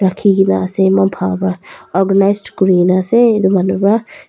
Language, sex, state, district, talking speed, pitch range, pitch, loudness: Nagamese, female, Nagaland, Dimapur, 180 wpm, 185-200 Hz, 195 Hz, -13 LUFS